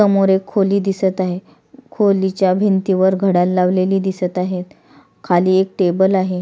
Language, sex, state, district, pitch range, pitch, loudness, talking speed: Marathi, female, Maharashtra, Solapur, 185-195 Hz, 190 Hz, -16 LUFS, 140 wpm